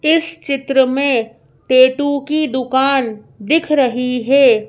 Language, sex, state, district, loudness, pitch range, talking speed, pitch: Hindi, female, Madhya Pradesh, Bhopal, -15 LUFS, 250-285 Hz, 115 wpm, 270 Hz